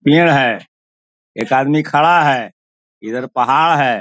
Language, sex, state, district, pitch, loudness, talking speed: Hindi, male, Bihar, East Champaran, 120 Hz, -14 LUFS, 135 wpm